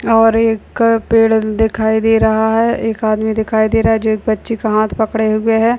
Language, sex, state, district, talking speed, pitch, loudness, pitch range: Hindi, female, Bihar, Sitamarhi, 220 wpm, 220 Hz, -14 LUFS, 220-225 Hz